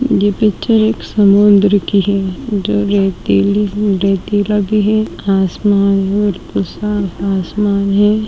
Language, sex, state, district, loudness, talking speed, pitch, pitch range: Hindi, male, Bihar, Darbhanga, -14 LUFS, 115 wpm, 205 Hz, 195-210 Hz